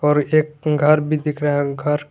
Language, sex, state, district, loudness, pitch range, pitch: Hindi, male, Jharkhand, Garhwa, -18 LUFS, 150-155 Hz, 150 Hz